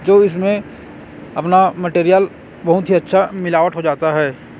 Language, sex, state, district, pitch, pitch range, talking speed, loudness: Hindi, male, Chhattisgarh, Korba, 180 Hz, 165-190 Hz, 145 wpm, -15 LUFS